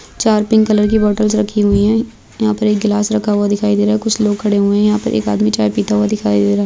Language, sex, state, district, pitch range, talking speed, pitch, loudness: Hindi, female, Chhattisgarh, Bastar, 130-215 Hz, 305 wpm, 210 Hz, -14 LUFS